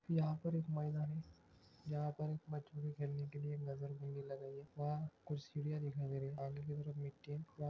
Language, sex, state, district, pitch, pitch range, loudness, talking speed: Hindi, male, Maharashtra, Pune, 145 Hz, 140-150 Hz, -44 LUFS, 240 wpm